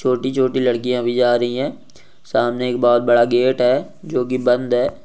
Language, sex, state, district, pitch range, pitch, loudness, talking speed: Hindi, male, Rajasthan, Nagaur, 120-130 Hz, 125 Hz, -18 LUFS, 200 wpm